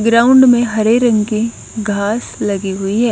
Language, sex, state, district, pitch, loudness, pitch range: Hindi, female, Punjab, Kapurthala, 220 Hz, -14 LUFS, 205-235 Hz